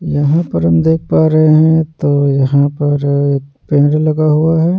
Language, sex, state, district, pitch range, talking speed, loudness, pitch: Hindi, male, Odisha, Nuapada, 140-160 Hz, 175 wpm, -12 LUFS, 150 Hz